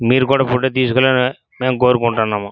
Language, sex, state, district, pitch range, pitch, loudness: Telugu, male, Andhra Pradesh, Srikakulam, 120-130 Hz, 125 Hz, -16 LUFS